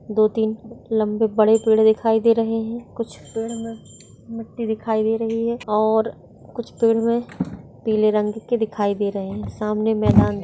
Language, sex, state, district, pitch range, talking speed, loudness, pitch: Hindi, female, Maharashtra, Nagpur, 215-230 Hz, 140 wpm, -21 LUFS, 220 Hz